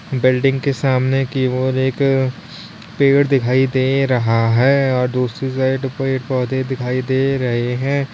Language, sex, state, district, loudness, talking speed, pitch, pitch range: Hindi, male, Uttar Pradesh, Lalitpur, -17 LUFS, 145 wpm, 130 Hz, 130-135 Hz